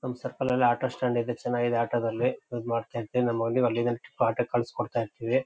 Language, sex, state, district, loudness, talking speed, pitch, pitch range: Kannada, male, Karnataka, Shimoga, -28 LUFS, 185 wpm, 120 Hz, 115-125 Hz